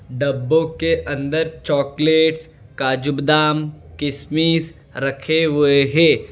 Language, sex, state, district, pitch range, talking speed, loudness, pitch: Hindi, male, Gujarat, Valsad, 140-160 Hz, 95 wpm, -18 LUFS, 150 Hz